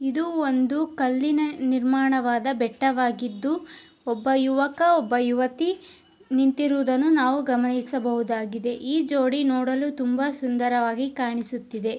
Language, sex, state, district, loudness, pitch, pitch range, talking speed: Kannada, female, Karnataka, Gulbarga, -23 LUFS, 265 Hz, 245-285 Hz, 90 wpm